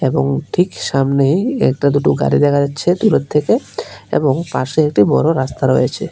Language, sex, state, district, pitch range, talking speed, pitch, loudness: Bengali, male, Tripura, West Tripura, 135-165 Hz, 155 wpm, 140 Hz, -15 LUFS